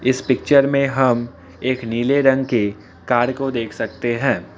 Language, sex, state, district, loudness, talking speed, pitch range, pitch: Hindi, male, Assam, Kamrup Metropolitan, -19 LUFS, 170 wpm, 115-135 Hz, 120 Hz